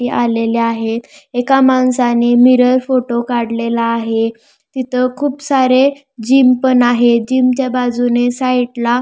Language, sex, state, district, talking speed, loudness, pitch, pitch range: Marathi, female, Maharashtra, Pune, 125 wpm, -13 LUFS, 245 Hz, 235-260 Hz